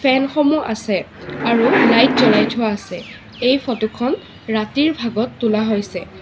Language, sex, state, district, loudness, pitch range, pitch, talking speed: Assamese, female, Assam, Sonitpur, -17 LUFS, 220-260 Hz, 235 Hz, 145 wpm